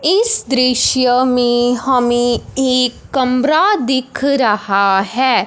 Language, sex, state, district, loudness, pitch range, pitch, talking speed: Hindi, male, Punjab, Fazilka, -14 LUFS, 240-265 Hz, 255 Hz, 100 wpm